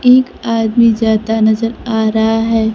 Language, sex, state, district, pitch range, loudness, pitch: Hindi, female, Bihar, Kaimur, 220-230 Hz, -13 LUFS, 225 Hz